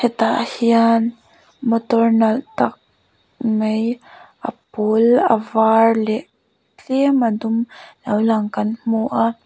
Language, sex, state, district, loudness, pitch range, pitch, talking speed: Mizo, female, Mizoram, Aizawl, -18 LUFS, 220-235 Hz, 230 Hz, 120 wpm